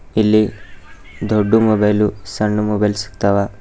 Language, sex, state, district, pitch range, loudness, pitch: Kannada, male, Karnataka, Bidar, 100-105 Hz, -16 LUFS, 105 Hz